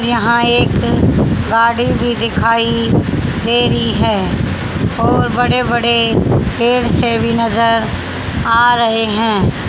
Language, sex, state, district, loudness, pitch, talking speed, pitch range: Hindi, female, Haryana, Rohtak, -14 LUFS, 230 Hz, 110 wpm, 230-235 Hz